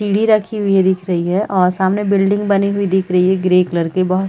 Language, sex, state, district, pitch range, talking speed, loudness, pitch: Hindi, female, Chhattisgarh, Rajnandgaon, 185-200 Hz, 265 wpm, -15 LUFS, 190 Hz